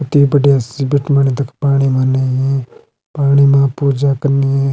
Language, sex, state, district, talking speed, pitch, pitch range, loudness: Garhwali, male, Uttarakhand, Uttarkashi, 140 wpm, 140 Hz, 135-140 Hz, -14 LUFS